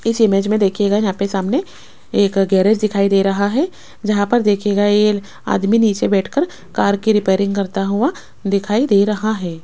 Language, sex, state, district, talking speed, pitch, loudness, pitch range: Hindi, female, Rajasthan, Jaipur, 180 wpm, 205 Hz, -16 LUFS, 200-215 Hz